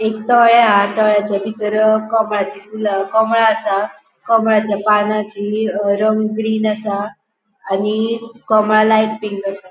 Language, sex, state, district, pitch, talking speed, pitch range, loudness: Konkani, female, Goa, North and South Goa, 215 Hz, 115 wpm, 205-220 Hz, -16 LUFS